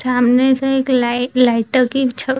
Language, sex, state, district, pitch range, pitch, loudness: Hindi, female, Bihar, Jamui, 245-265 Hz, 255 Hz, -15 LUFS